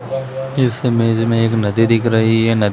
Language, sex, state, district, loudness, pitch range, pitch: Hindi, male, Chhattisgarh, Bilaspur, -16 LUFS, 115-125 Hz, 115 Hz